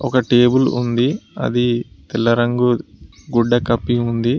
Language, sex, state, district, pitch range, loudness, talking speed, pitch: Telugu, male, Telangana, Mahabubabad, 120-125 Hz, -17 LUFS, 125 wpm, 120 Hz